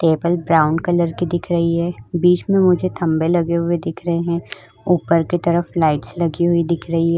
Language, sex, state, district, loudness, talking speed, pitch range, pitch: Hindi, female, Uttar Pradesh, Budaun, -18 LUFS, 200 wpm, 165-175 Hz, 170 Hz